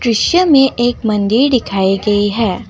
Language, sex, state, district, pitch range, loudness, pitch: Hindi, female, Assam, Kamrup Metropolitan, 205-255 Hz, -13 LUFS, 225 Hz